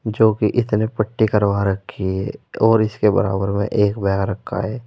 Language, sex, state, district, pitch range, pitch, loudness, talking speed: Hindi, male, Uttar Pradesh, Saharanpur, 100-110 Hz, 105 Hz, -19 LUFS, 185 wpm